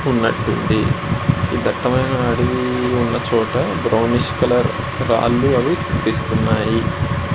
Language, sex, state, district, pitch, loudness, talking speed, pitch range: Telugu, male, Andhra Pradesh, Srikakulam, 120 Hz, -18 LUFS, 90 wpm, 110-125 Hz